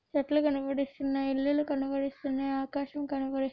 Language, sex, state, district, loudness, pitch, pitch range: Telugu, male, Andhra Pradesh, Anantapur, -31 LUFS, 275 Hz, 270-285 Hz